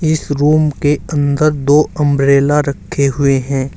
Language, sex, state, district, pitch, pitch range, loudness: Hindi, male, Uttar Pradesh, Saharanpur, 145 Hz, 140-150 Hz, -13 LUFS